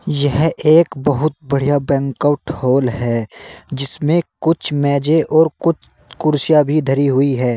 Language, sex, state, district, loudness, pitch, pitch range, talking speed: Hindi, male, Uttar Pradesh, Saharanpur, -16 LUFS, 145 Hz, 135-155 Hz, 140 wpm